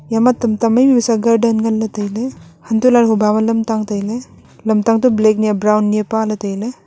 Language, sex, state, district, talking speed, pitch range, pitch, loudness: Wancho, female, Arunachal Pradesh, Longding, 200 wpm, 215-230 Hz, 220 Hz, -15 LUFS